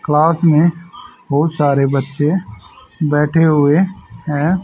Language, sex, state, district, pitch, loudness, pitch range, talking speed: Hindi, male, Haryana, Charkhi Dadri, 155 Hz, -15 LUFS, 145-170 Hz, 105 wpm